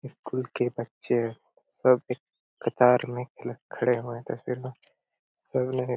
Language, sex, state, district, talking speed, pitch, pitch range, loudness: Hindi, male, Chhattisgarh, Korba, 140 wpm, 125 Hz, 120-130 Hz, -28 LUFS